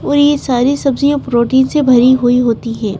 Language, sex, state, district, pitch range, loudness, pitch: Hindi, female, Madhya Pradesh, Bhopal, 240-280 Hz, -12 LUFS, 255 Hz